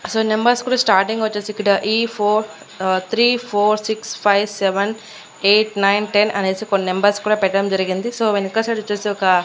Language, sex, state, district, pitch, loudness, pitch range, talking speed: Telugu, female, Andhra Pradesh, Annamaya, 210 Hz, -18 LUFS, 195-220 Hz, 170 wpm